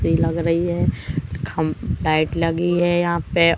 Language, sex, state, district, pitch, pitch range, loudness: Hindi, female, Madhya Pradesh, Katni, 165 Hz, 160-170 Hz, -21 LUFS